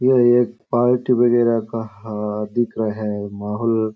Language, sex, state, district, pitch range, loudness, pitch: Rajasthani, male, Rajasthan, Churu, 105-120 Hz, -19 LUFS, 115 Hz